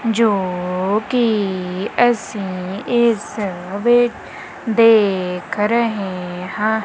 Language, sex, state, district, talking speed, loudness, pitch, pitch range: Punjabi, female, Punjab, Kapurthala, 70 wpm, -18 LUFS, 210 Hz, 185-230 Hz